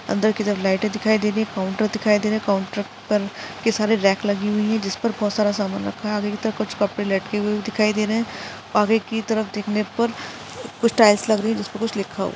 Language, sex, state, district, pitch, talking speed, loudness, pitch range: Hindi, female, Maharashtra, Chandrapur, 210 Hz, 265 wpm, -22 LUFS, 205-220 Hz